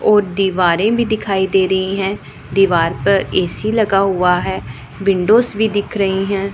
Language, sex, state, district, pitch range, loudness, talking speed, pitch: Hindi, male, Punjab, Pathankot, 185-205 Hz, -16 LUFS, 165 wpm, 195 Hz